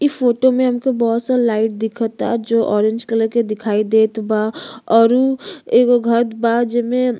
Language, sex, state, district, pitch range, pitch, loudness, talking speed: Bhojpuri, female, Uttar Pradesh, Gorakhpur, 225-245 Hz, 230 Hz, -16 LUFS, 185 wpm